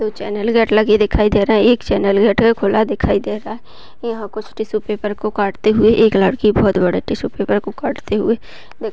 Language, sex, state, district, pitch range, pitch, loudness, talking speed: Hindi, female, Chhattisgarh, Sarguja, 205-220 Hz, 215 Hz, -16 LUFS, 230 wpm